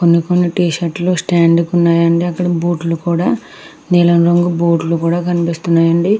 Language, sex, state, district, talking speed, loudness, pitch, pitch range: Telugu, female, Andhra Pradesh, Krishna, 165 wpm, -14 LUFS, 170 Hz, 170-175 Hz